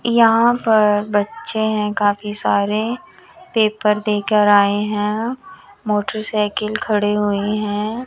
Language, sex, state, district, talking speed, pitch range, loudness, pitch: Hindi, female, Chandigarh, Chandigarh, 105 wpm, 205-230 Hz, -17 LUFS, 210 Hz